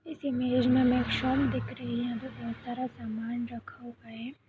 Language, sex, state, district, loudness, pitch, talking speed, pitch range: Hindi, female, Uttar Pradesh, Budaun, -30 LUFS, 245 Hz, 240 wpm, 235-255 Hz